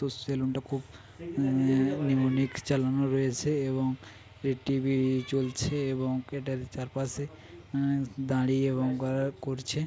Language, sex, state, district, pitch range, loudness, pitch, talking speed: Bengali, male, West Bengal, Paschim Medinipur, 130-135 Hz, -30 LUFS, 135 Hz, 110 wpm